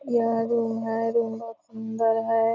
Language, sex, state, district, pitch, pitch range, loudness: Hindi, female, Bihar, Purnia, 225 Hz, 225-230 Hz, -25 LUFS